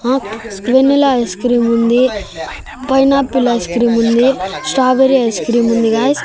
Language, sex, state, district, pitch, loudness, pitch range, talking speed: Telugu, male, Andhra Pradesh, Annamaya, 240 Hz, -13 LUFS, 230-265 Hz, 115 wpm